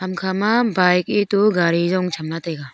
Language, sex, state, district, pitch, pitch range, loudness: Wancho, female, Arunachal Pradesh, Longding, 185 Hz, 170-200 Hz, -18 LUFS